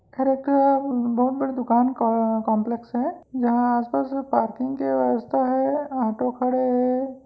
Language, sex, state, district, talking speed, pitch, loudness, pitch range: Chhattisgarhi, female, Chhattisgarh, Raigarh, 150 wpm, 255 Hz, -23 LUFS, 235-265 Hz